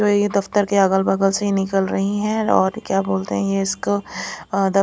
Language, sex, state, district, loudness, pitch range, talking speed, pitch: Hindi, female, Punjab, Fazilka, -19 LUFS, 195-205 Hz, 210 wpm, 195 Hz